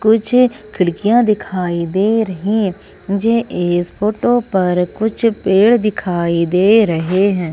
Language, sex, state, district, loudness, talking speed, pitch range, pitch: Hindi, female, Madhya Pradesh, Umaria, -15 LUFS, 125 wpm, 180-220 Hz, 200 Hz